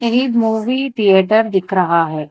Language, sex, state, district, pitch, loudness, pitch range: Hindi, female, Telangana, Hyderabad, 215 Hz, -15 LUFS, 185-235 Hz